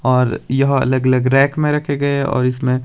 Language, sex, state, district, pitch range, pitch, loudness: Hindi, male, Himachal Pradesh, Shimla, 125-140 Hz, 130 Hz, -16 LUFS